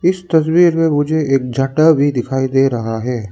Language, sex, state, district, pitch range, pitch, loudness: Hindi, male, Arunachal Pradesh, Lower Dibang Valley, 130-160 Hz, 140 Hz, -15 LUFS